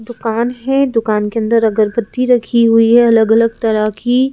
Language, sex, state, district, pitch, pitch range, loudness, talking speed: Hindi, female, Madhya Pradesh, Bhopal, 230 Hz, 225-240 Hz, -13 LUFS, 195 wpm